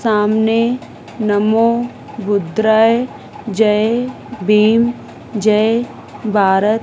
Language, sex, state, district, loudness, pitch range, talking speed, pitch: Hindi, female, Madhya Pradesh, Dhar, -15 LUFS, 210-230 Hz, 55 wpm, 220 Hz